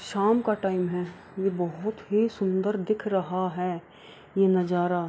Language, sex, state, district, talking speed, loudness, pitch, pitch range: Hindi, female, Bihar, Kishanganj, 165 wpm, -27 LUFS, 190 Hz, 180-205 Hz